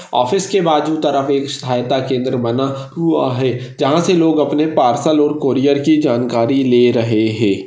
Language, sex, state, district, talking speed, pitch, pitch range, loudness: Hindi, male, Maharashtra, Solapur, 170 wpm, 135 Hz, 125-155 Hz, -15 LUFS